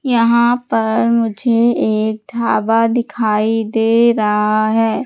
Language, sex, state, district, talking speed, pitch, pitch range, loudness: Hindi, female, Madhya Pradesh, Katni, 105 wpm, 225 Hz, 220-235 Hz, -15 LUFS